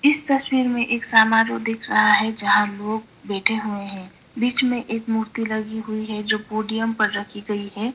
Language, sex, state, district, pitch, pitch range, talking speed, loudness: Hindi, female, Sikkim, Gangtok, 220 Hz, 210-230 Hz, 190 wpm, -21 LUFS